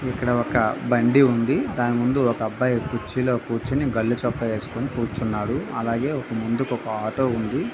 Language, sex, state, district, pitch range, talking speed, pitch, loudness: Telugu, male, Andhra Pradesh, Visakhapatnam, 115-130 Hz, 155 wpm, 120 Hz, -23 LUFS